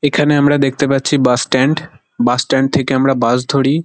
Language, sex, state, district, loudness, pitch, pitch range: Bengali, male, West Bengal, Kolkata, -14 LUFS, 135 Hz, 130-145 Hz